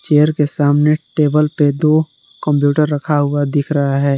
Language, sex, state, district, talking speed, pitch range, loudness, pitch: Hindi, male, Jharkhand, Garhwa, 170 wpm, 145-150 Hz, -15 LUFS, 150 Hz